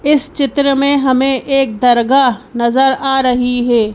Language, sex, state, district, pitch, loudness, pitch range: Hindi, male, Madhya Pradesh, Bhopal, 265 Hz, -12 LUFS, 245-275 Hz